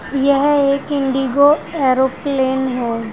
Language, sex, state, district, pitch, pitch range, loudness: Hindi, female, Haryana, Rohtak, 270 Hz, 260-285 Hz, -16 LUFS